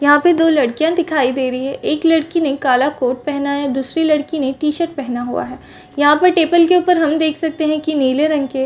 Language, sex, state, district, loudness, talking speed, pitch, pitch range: Hindi, female, Chhattisgarh, Bastar, -16 LUFS, 240 wpm, 300 Hz, 270-320 Hz